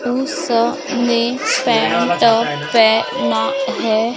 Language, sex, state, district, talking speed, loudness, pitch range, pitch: Hindi, female, Maharashtra, Gondia, 100 wpm, -16 LUFS, 225-250 Hz, 235 Hz